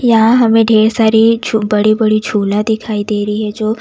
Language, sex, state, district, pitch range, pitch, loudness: Hindi, female, Bihar, West Champaran, 210-225 Hz, 220 Hz, -12 LUFS